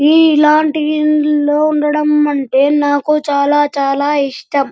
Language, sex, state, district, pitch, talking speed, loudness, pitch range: Telugu, male, Andhra Pradesh, Anantapur, 295 Hz, 115 wpm, -13 LUFS, 285-300 Hz